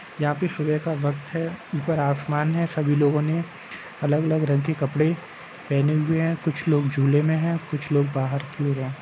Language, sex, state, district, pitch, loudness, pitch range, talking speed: Hindi, male, Uttar Pradesh, Jalaun, 150 Hz, -24 LUFS, 145-160 Hz, 200 wpm